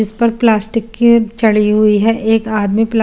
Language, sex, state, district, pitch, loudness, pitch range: Hindi, female, Chandigarh, Chandigarh, 220 Hz, -13 LUFS, 215-230 Hz